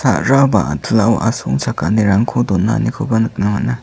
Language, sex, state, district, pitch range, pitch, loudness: Garo, male, Meghalaya, South Garo Hills, 100-125 Hz, 110 Hz, -15 LUFS